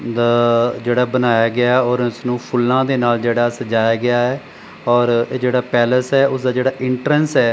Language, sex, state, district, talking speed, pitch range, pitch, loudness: Punjabi, male, Punjab, Pathankot, 200 wpm, 120-125 Hz, 120 Hz, -16 LUFS